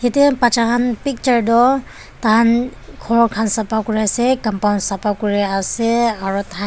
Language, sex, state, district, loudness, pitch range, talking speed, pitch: Nagamese, female, Nagaland, Dimapur, -16 LUFS, 210-240 Hz, 170 wpm, 230 Hz